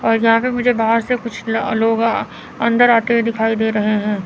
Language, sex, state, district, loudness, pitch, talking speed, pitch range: Hindi, female, Chandigarh, Chandigarh, -16 LUFS, 225 Hz, 240 wpm, 225-235 Hz